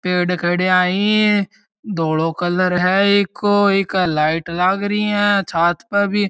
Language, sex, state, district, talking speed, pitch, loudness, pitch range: Marwari, male, Rajasthan, Churu, 145 wpm, 185 Hz, -17 LUFS, 175-200 Hz